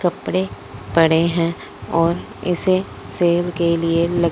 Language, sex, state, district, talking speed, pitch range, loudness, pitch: Hindi, female, Punjab, Fazilka, 125 wpm, 165-175 Hz, -19 LUFS, 170 Hz